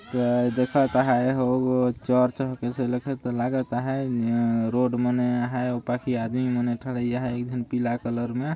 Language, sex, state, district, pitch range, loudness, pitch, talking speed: Sadri, male, Chhattisgarh, Jashpur, 120-125 Hz, -25 LUFS, 125 Hz, 160 wpm